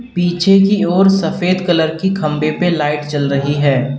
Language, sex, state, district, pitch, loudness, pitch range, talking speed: Hindi, male, Uttar Pradesh, Lalitpur, 175 Hz, -14 LUFS, 150-190 Hz, 180 wpm